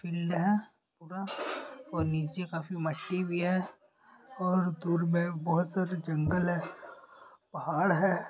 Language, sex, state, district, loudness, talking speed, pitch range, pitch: Hindi, male, Bihar, Bhagalpur, -31 LUFS, 125 wpm, 170-185 Hz, 180 Hz